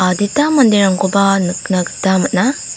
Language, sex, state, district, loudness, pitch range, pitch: Garo, female, Meghalaya, South Garo Hills, -14 LUFS, 185-205 Hz, 195 Hz